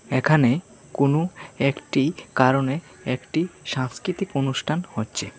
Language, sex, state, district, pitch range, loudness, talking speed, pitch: Bengali, male, Tripura, West Tripura, 130-160 Hz, -23 LUFS, 90 wpm, 135 Hz